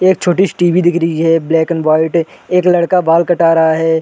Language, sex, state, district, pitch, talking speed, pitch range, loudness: Hindi, male, Chhattisgarh, Raigarh, 170 Hz, 240 wpm, 165-175 Hz, -12 LUFS